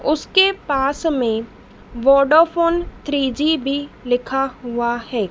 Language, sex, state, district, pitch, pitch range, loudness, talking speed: Hindi, female, Madhya Pradesh, Dhar, 275 Hz, 245-310 Hz, -18 LUFS, 115 wpm